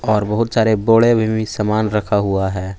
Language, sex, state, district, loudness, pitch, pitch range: Hindi, male, Jharkhand, Palamu, -16 LUFS, 110 Hz, 100-110 Hz